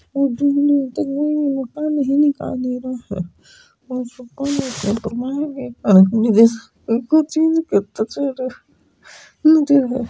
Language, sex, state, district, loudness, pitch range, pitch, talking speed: Hindi, female, Rajasthan, Nagaur, -18 LUFS, 235-290 Hz, 265 Hz, 75 wpm